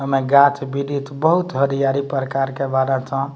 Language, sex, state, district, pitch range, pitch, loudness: Bhojpuri, male, Bihar, Muzaffarpur, 135-140 Hz, 135 Hz, -19 LUFS